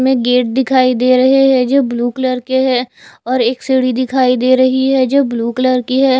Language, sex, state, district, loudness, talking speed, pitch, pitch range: Hindi, female, Chhattisgarh, Raipur, -13 LUFS, 225 wpm, 255 Hz, 250-260 Hz